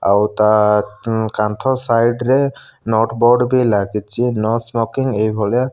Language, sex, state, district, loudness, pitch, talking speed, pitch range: Odia, male, Odisha, Malkangiri, -16 LUFS, 115 Hz, 145 wpm, 105-125 Hz